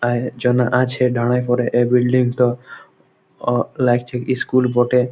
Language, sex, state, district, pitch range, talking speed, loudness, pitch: Bengali, male, West Bengal, Malda, 120-125 Hz, 150 wpm, -18 LUFS, 125 Hz